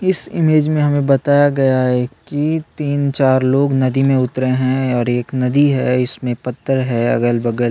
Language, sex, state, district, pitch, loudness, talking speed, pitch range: Hindi, male, Chhattisgarh, Sukma, 130 Hz, -16 LUFS, 180 wpm, 125-145 Hz